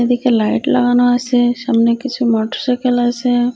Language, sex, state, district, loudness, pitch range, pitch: Bengali, female, Odisha, Malkangiri, -15 LUFS, 240-250 Hz, 245 Hz